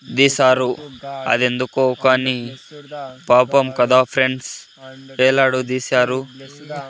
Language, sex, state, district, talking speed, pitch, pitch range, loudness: Telugu, male, Andhra Pradesh, Sri Satya Sai, 70 wpm, 130 Hz, 130-135 Hz, -17 LUFS